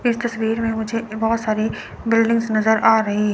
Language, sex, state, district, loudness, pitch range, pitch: Hindi, female, Chandigarh, Chandigarh, -19 LUFS, 220-230 Hz, 225 Hz